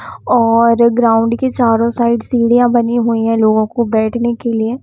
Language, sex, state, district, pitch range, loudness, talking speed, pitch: Hindi, female, Bihar, Samastipur, 225-240 Hz, -13 LUFS, 175 wpm, 235 Hz